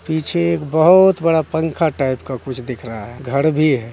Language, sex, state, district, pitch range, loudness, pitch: Hindi, male, Bihar, Muzaffarpur, 130-165 Hz, -17 LUFS, 155 Hz